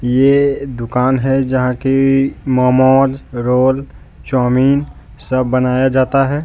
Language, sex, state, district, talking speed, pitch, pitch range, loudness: Hindi, male, Jharkhand, Deoghar, 110 wpm, 130 Hz, 125-135 Hz, -14 LUFS